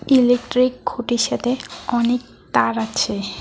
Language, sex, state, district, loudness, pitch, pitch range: Bengali, female, West Bengal, Alipurduar, -20 LUFS, 245 Hz, 225-250 Hz